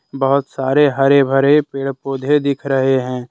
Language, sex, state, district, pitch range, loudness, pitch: Hindi, male, Jharkhand, Deoghar, 135-140 Hz, -16 LUFS, 135 Hz